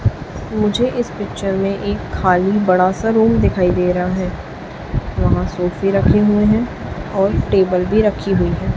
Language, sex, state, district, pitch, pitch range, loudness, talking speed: Hindi, female, Chhattisgarh, Raipur, 195 Hz, 185-210 Hz, -17 LUFS, 165 wpm